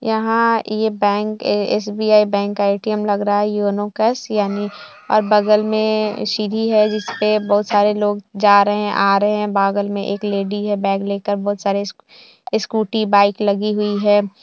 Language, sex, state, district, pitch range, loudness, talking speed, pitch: Hindi, female, Bihar, Jamui, 205-215 Hz, -17 LUFS, 175 wpm, 205 Hz